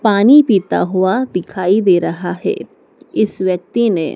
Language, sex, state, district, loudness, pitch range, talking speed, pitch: Hindi, female, Madhya Pradesh, Dhar, -14 LUFS, 180-215 Hz, 145 wpm, 190 Hz